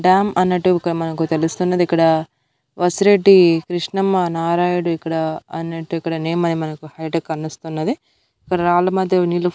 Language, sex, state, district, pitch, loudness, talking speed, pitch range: Telugu, female, Andhra Pradesh, Annamaya, 170 Hz, -18 LUFS, 130 wpm, 160-180 Hz